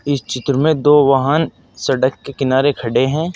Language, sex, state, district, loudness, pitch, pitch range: Hindi, male, Uttar Pradesh, Saharanpur, -16 LUFS, 140 Hz, 130-145 Hz